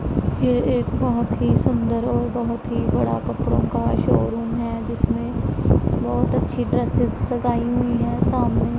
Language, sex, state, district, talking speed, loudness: Hindi, female, Punjab, Pathankot, 145 wpm, -21 LUFS